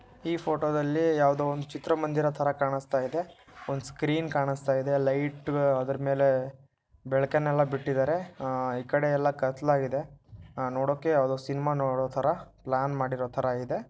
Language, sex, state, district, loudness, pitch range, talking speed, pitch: Kannada, male, Karnataka, Shimoga, -28 LUFS, 130-145 Hz, 125 wpm, 140 Hz